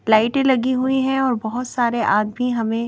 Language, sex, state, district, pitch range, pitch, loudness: Hindi, female, Madhya Pradesh, Bhopal, 225-260 Hz, 245 Hz, -19 LUFS